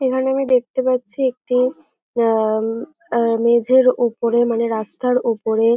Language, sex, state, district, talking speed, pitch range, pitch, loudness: Bengali, female, West Bengal, North 24 Parganas, 135 wpm, 230-255 Hz, 240 Hz, -18 LUFS